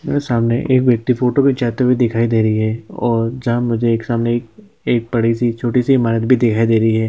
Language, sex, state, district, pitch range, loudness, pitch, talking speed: Hindi, male, Chhattisgarh, Sukma, 115-125 Hz, -16 LUFS, 120 Hz, 245 wpm